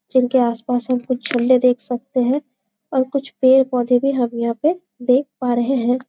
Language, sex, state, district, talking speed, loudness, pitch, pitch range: Hindi, female, Chhattisgarh, Bastar, 195 wpm, -18 LUFS, 255 Hz, 245-260 Hz